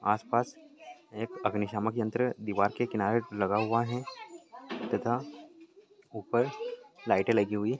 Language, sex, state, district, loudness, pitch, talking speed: Hindi, male, Bihar, Purnia, -31 LUFS, 120 Hz, 130 wpm